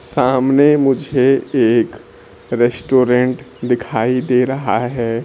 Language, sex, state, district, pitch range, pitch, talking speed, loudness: Hindi, male, Bihar, Kaimur, 120-130 Hz, 125 Hz, 90 wpm, -15 LUFS